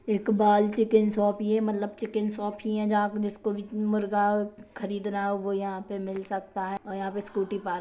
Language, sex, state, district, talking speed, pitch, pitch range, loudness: Hindi, female, Chhattisgarh, Kabirdham, 210 wpm, 205 Hz, 200-215 Hz, -28 LUFS